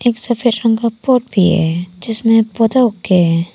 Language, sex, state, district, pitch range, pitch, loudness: Hindi, female, Arunachal Pradesh, Papum Pare, 180-235 Hz, 225 Hz, -14 LUFS